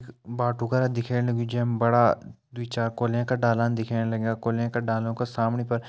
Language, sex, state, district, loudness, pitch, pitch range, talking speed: Garhwali, male, Uttarakhand, Uttarkashi, -26 LUFS, 120 Hz, 115-120 Hz, 215 wpm